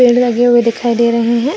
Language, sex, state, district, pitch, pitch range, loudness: Hindi, female, Bihar, Jamui, 240 Hz, 235-245 Hz, -12 LUFS